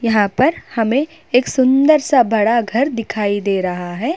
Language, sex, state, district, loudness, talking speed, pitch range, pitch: Hindi, female, Uttar Pradesh, Budaun, -16 LUFS, 175 wpm, 210-270 Hz, 235 Hz